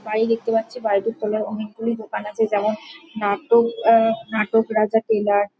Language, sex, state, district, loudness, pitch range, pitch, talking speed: Bengali, female, West Bengal, Jhargram, -21 LUFS, 215-225 Hz, 220 Hz, 160 wpm